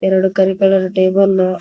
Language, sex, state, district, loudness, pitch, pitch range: Kannada, female, Karnataka, Koppal, -13 LUFS, 190 Hz, 185-195 Hz